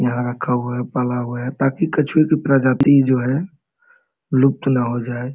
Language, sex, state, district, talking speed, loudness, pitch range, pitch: Hindi, male, Jharkhand, Sahebganj, 190 wpm, -18 LUFS, 125-150 Hz, 130 Hz